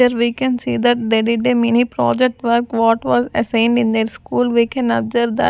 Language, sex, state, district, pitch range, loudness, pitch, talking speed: English, female, Punjab, Fazilka, 225-245 Hz, -16 LUFS, 235 Hz, 240 wpm